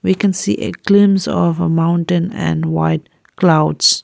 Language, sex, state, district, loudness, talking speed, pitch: English, female, Arunachal Pradesh, Lower Dibang Valley, -15 LUFS, 165 wpm, 170 Hz